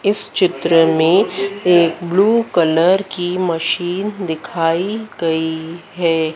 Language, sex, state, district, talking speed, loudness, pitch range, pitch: Hindi, female, Madhya Pradesh, Dhar, 105 wpm, -16 LUFS, 165-195 Hz, 175 Hz